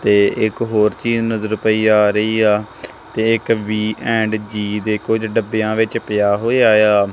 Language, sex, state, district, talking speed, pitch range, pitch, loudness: Punjabi, male, Punjab, Kapurthala, 185 wpm, 105-110 Hz, 110 Hz, -16 LUFS